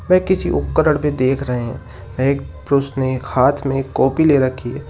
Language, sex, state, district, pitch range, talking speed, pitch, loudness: Hindi, male, Uttar Pradesh, Shamli, 130-145 Hz, 195 wpm, 135 Hz, -17 LUFS